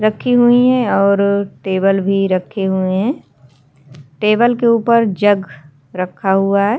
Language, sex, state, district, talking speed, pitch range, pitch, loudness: Hindi, female, Uttarakhand, Tehri Garhwal, 140 wpm, 185-220 Hz, 195 Hz, -14 LUFS